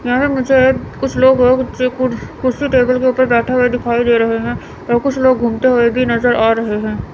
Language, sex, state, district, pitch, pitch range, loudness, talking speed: Hindi, female, Chandigarh, Chandigarh, 250 Hz, 235-260 Hz, -14 LUFS, 235 wpm